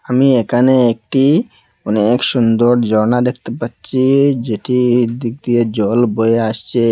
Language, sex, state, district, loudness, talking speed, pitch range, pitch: Bengali, male, Assam, Hailakandi, -14 LUFS, 120 wpm, 115-125 Hz, 120 Hz